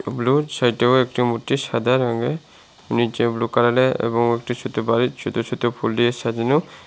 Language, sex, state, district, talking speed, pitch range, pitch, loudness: Bengali, male, Tripura, Unakoti, 155 wpm, 115-130 Hz, 120 Hz, -20 LUFS